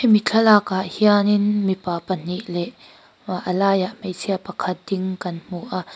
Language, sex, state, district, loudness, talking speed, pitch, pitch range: Mizo, female, Mizoram, Aizawl, -21 LUFS, 150 wpm, 185 Hz, 180-205 Hz